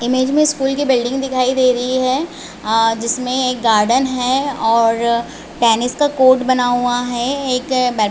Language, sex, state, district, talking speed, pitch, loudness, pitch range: Hindi, female, Chhattisgarh, Raigarh, 165 wpm, 255 Hz, -16 LUFS, 240-260 Hz